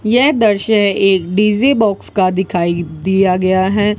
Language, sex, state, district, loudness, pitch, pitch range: Hindi, female, Rajasthan, Bikaner, -14 LUFS, 195 Hz, 185-210 Hz